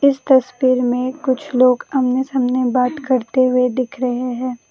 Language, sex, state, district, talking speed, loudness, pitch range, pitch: Hindi, female, Assam, Kamrup Metropolitan, 165 wpm, -17 LUFS, 250-265 Hz, 255 Hz